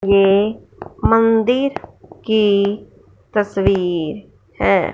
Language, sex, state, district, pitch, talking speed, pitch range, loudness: Hindi, female, Punjab, Fazilka, 205 Hz, 60 wpm, 195-225 Hz, -17 LUFS